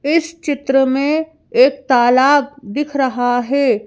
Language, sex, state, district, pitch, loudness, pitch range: Hindi, female, Madhya Pradesh, Bhopal, 275 Hz, -15 LUFS, 260-295 Hz